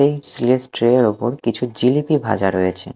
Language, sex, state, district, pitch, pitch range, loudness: Bengali, male, Odisha, Malkangiri, 125 Hz, 110-130 Hz, -18 LUFS